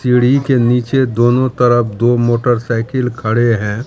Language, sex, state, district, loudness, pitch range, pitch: Hindi, male, Bihar, Katihar, -14 LUFS, 120-125 Hz, 120 Hz